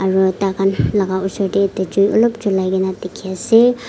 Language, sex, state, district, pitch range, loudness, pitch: Nagamese, female, Nagaland, Kohima, 190-205 Hz, -17 LUFS, 195 Hz